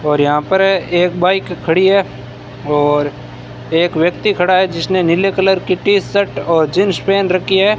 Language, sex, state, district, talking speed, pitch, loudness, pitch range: Hindi, male, Rajasthan, Bikaner, 175 wpm, 180 Hz, -14 LUFS, 160-195 Hz